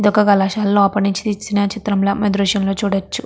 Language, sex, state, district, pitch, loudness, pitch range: Telugu, female, Andhra Pradesh, Krishna, 200 Hz, -17 LUFS, 200-205 Hz